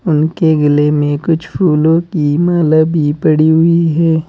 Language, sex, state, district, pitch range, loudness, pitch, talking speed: Hindi, male, Uttar Pradesh, Saharanpur, 150-165 Hz, -12 LUFS, 160 Hz, 155 wpm